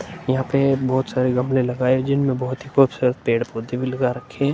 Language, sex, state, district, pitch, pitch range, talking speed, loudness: Hindi, male, Uttar Pradesh, Hamirpur, 130 Hz, 125-135 Hz, 225 wpm, -21 LUFS